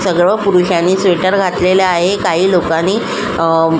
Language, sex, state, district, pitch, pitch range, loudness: Marathi, female, Maharashtra, Solapur, 180 Hz, 170-190 Hz, -13 LUFS